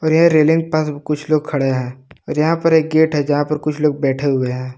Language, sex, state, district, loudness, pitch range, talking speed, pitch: Hindi, male, Jharkhand, Palamu, -17 LUFS, 140-155 Hz, 250 wpm, 150 Hz